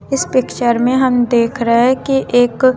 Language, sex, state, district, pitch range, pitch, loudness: Hindi, female, Bihar, West Champaran, 240-260 Hz, 245 Hz, -14 LUFS